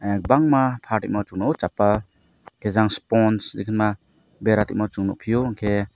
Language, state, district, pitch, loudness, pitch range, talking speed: Kokborok, Tripura, Dhalai, 105 Hz, -22 LUFS, 100-110 Hz, 100 wpm